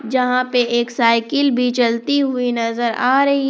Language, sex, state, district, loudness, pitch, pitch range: Hindi, female, Jharkhand, Palamu, -17 LUFS, 250 Hz, 235-265 Hz